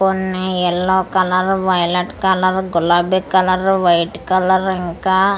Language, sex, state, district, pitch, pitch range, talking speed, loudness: Telugu, female, Andhra Pradesh, Manyam, 185 Hz, 180-190 Hz, 110 wpm, -16 LUFS